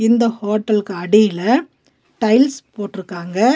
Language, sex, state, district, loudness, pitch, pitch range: Tamil, female, Tamil Nadu, Nilgiris, -17 LUFS, 215 Hz, 200-235 Hz